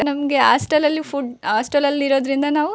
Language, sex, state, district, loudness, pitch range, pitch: Kannada, female, Karnataka, Shimoga, -18 LUFS, 275-300 Hz, 285 Hz